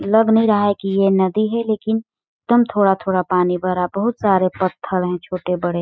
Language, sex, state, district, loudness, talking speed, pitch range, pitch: Hindi, female, Chhattisgarh, Balrampur, -18 LUFS, 205 wpm, 185-215 Hz, 195 Hz